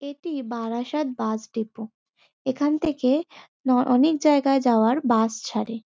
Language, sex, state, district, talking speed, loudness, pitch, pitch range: Bengali, female, West Bengal, North 24 Parganas, 135 wpm, -23 LUFS, 250 Hz, 225-285 Hz